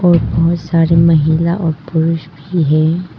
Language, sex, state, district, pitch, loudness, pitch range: Hindi, female, Arunachal Pradesh, Papum Pare, 165 Hz, -14 LUFS, 160-170 Hz